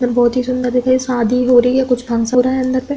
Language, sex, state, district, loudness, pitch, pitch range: Hindi, female, Uttar Pradesh, Hamirpur, -15 LUFS, 250 Hz, 245-255 Hz